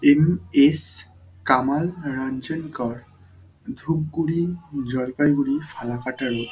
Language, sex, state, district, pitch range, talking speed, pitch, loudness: Bengali, male, West Bengal, Dakshin Dinajpur, 120-155 Hz, 90 wpm, 135 Hz, -23 LUFS